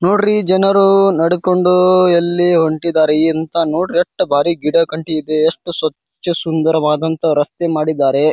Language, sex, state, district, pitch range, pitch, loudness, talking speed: Kannada, male, Karnataka, Bijapur, 155-180 Hz, 165 Hz, -14 LUFS, 115 wpm